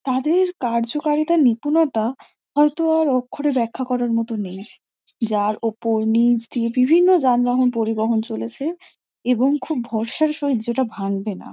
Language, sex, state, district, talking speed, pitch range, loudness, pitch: Bengali, female, West Bengal, Kolkata, 135 wpm, 225-295 Hz, -20 LUFS, 250 Hz